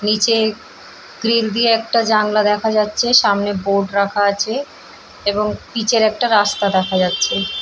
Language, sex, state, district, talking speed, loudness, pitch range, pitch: Bengali, female, West Bengal, Purulia, 135 wpm, -16 LUFS, 200-225 Hz, 210 Hz